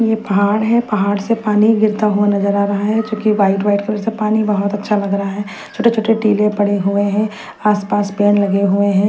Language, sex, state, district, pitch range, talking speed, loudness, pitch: Hindi, female, Chandigarh, Chandigarh, 200-215 Hz, 230 wpm, -15 LUFS, 205 Hz